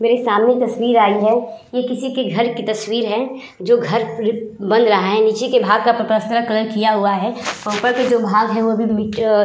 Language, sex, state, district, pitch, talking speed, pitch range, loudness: Hindi, female, Uttar Pradesh, Budaun, 225 Hz, 210 wpm, 215-235 Hz, -17 LUFS